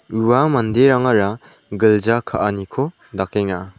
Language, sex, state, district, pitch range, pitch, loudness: Garo, male, Meghalaya, South Garo Hills, 100-125 Hz, 110 Hz, -17 LUFS